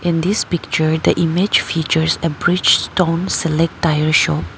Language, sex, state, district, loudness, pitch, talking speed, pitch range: English, female, Arunachal Pradesh, Papum Pare, -16 LUFS, 165 Hz, 145 wpm, 160-175 Hz